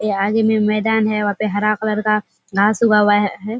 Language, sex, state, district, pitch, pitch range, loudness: Hindi, female, Bihar, Kishanganj, 215 Hz, 205-215 Hz, -17 LUFS